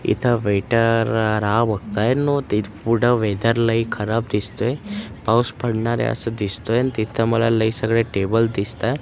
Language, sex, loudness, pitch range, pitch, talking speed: Marathi, male, -20 LUFS, 110-115 Hz, 115 Hz, 145 wpm